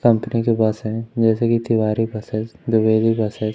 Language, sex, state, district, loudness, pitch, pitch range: Hindi, male, Madhya Pradesh, Umaria, -19 LUFS, 115 Hz, 110-115 Hz